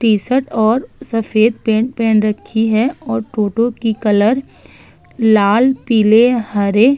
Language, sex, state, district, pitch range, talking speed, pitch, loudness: Hindi, female, Uttar Pradesh, Budaun, 215-240 Hz, 130 wpm, 225 Hz, -15 LUFS